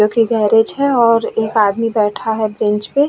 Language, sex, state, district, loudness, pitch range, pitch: Hindi, female, Goa, North and South Goa, -15 LUFS, 210-230 Hz, 225 Hz